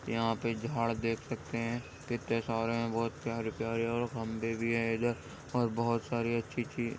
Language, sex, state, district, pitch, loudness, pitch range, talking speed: Hindi, male, Uttar Pradesh, Jyotiba Phule Nagar, 115 Hz, -34 LUFS, 115-120 Hz, 215 wpm